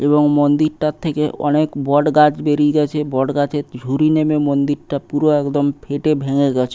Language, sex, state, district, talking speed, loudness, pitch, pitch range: Bengali, male, West Bengal, Paschim Medinipur, 150 wpm, -17 LUFS, 145 Hz, 140-150 Hz